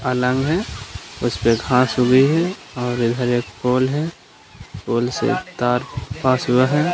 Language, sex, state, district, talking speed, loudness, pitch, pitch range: Hindi, male, Maharashtra, Aurangabad, 140 wpm, -19 LUFS, 125 Hz, 120-140 Hz